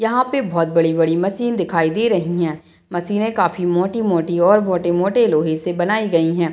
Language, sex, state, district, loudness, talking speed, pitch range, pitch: Hindi, female, Bihar, Madhepura, -18 LUFS, 175 wpm, 165-210 Hz, 175 Hz